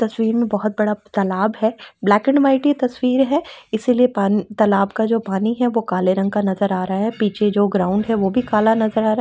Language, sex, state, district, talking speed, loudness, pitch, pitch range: Hindi, female, Uttar Pradesh, Etah, 245 wpm, -18 LUFS, 215 Hz, 200-230 Hz